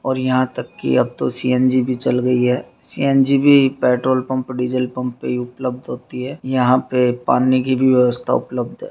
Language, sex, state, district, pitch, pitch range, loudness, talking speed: Hindi, male, Bihar, Darbhanga, 125 Hz, 125-130 Hz, -18 LUFS, 195 wpm